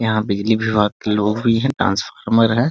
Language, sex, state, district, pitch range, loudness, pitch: Hindi, male, Bihar, Muzaffarpur, 105-115 Hz, -18 LUFS, 110 Hz